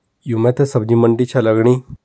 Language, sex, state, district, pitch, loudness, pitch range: Kumaoni, male, Uttarakhand, Tehri Garhwal, 120 Hz, -15 LUFS, 115-125 Hz